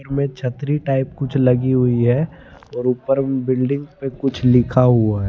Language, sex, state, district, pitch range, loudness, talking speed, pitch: Hindi, male, Chandigarh, Chandigarh, 125-140 Hz, -18 LUFS, 160 wpm, 130 Hz